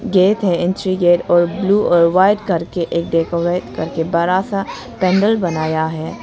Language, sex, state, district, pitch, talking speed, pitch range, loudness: Hindi, female, Arunachal Pradesh, Lower Dibang Valley, 175 Hz, 165 wpm, 170-190 Hz, -16 LUFS